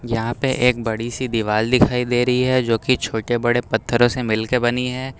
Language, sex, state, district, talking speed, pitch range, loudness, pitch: Hindi, male, Uttar Pradesh, Lucknow, 230 wpm, 115-125 Hz, -19 LUFS, 120 Hz